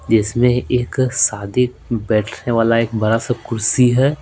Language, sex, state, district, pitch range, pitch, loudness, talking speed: Hindi, male, Bihar, Patna, 110-125 Hz, 115 Hz, -17 LUFS, 140 wpm